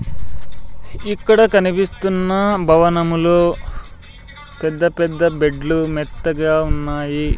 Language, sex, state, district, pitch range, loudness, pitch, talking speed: Telugu, male, Andhra Pradesh, Sri Satya Sai, 155-190 Hz, -16 LUFS, 170 Hz, 65 wpm